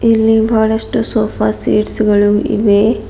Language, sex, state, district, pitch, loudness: Kannada, female, Karnataka, Bidar, 210 Hz, -13 LUFS